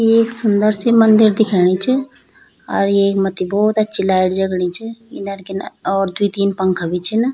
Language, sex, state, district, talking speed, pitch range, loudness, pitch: Garhwali, female, Uttarakhand, Tehri Garhwal, 180 wpm, 190-220 Hz, -16 LUFS, 200 Hz